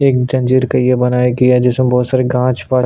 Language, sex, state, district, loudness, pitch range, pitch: Hindi, male, Chhattisgarh, Sukma, -13 LUFS, 125-130 Hz, 125 Hz